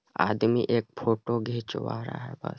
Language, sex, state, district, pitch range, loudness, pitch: Hindi, male, Bihar, Vaishali, 110-125 Hz, -28 LUFS, 115 Hz